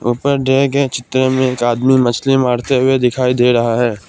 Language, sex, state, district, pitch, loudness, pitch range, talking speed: Hindi, male, Assam, Kamrup Metropolitan, 125 Hz, -14 LUFS, 120-130 Hz, 205 wpm